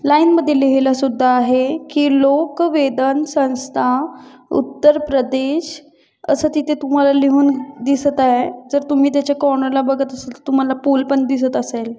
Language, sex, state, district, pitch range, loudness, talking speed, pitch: Marathi, female, Maharashtra, Aurangabad, 265-295 Hz, -16 LUFS, 140 wpm, 275 Hz